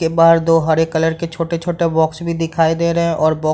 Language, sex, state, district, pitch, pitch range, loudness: Hindi, male, Bihar, Madhepura, 165 Hz, 160-170 Hz, -16 LUFS